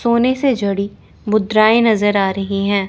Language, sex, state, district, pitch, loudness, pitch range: Hindi, female, Chandigarh, Chandigarh, 210 Hz, -15 LUFS, 200-235 Hz